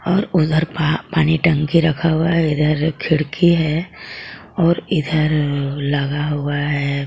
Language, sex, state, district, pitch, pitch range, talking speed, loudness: Hindi, female, Jharkhand, Garhwa, 155 Hz, 150-165 Hz, 125 wpm, -18 LUFS